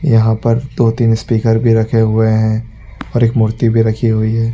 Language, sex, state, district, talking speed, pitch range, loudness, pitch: Hindi, male, Chhattisgarh, Raigarh, 200 wpm, 110-115 Hz, -13 LUFS, 115 Hz